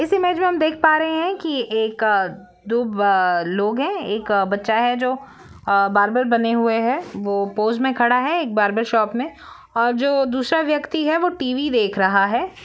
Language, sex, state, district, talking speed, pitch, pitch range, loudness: Hindi, female, Jharkhand, Jamtara, 195 wpm, 235 Hz, 205-295 Hz, -19 LUFS